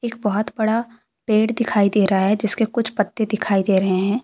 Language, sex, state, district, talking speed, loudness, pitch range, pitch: Hindi, female, Jharkhand, Deoghar, 195 wpm, -19 LUFS, 200-230 Hz, 215 Hz